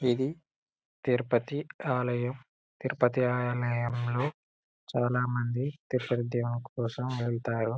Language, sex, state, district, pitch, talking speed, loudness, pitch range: Telugu, male, Telangana, Karimnagar, 125 Hz, 85 wpm, -31 LUFS, 120-130 Hz